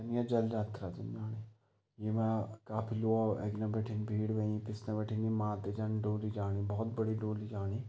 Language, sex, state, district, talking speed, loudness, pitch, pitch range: Garhwali, male, Uttarakhand, Tehri Garhwal, 160 wpm, -36 LUFS, 110 Hz, 105-110 Hz